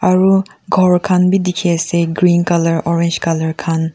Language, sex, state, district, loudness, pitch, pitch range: Nagamese, female, Nagaland, Kohima, -14 LUFS, 170 Hz, 165-185 Hz